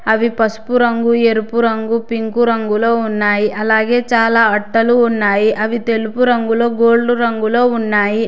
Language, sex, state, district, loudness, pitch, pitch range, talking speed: Telugu, female, Telangana, Hyderabad, -14 LUFS, 230 Hz, 220-235 Hz, 130 wpm